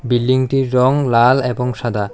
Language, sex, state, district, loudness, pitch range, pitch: Bengali, male, Tripura, South Tripura, -15 LUFS, 120-130 Hz, 125 Hz